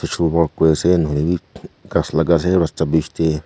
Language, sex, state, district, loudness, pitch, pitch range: Nagamese, male, Nagaland, Kohima, -18 LUFS, 80 Hz, 80-85 Hz